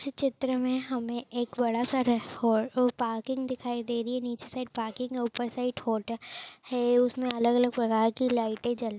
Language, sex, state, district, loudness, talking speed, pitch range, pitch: Hindi, female, Maharashtra, Dhule, -29 LUFS, 185 wpm, 235-250 Hz, 240 Hz